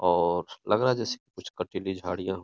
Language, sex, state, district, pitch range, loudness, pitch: Hindi, male, Uttar Pradesh, Etah, 90-125 Hz, -29 LUFS, 95 Hz